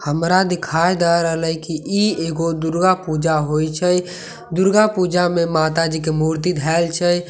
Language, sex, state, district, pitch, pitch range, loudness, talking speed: Maithili, male, Bihar, Katihar, 165 Hz, 160-180 Hz, -18 LUFS, 155 wpm